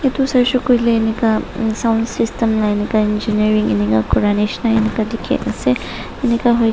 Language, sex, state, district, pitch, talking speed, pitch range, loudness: Nagamese, female, Nagaland, Dimapur, 225 Hz, 145 wpm, 215-235 Hz, -17 LUFS